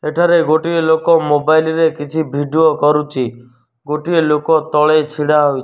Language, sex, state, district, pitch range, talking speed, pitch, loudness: Odia, male, Odisha, Nuapada, 150-160 Hz, 150 wpm, 155 Hz, -14 LUFS